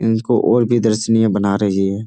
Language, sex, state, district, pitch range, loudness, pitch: Hindi, male, Jharkhand, Jamtara, 100-115 Hz, -16 LUFS, 110 Hz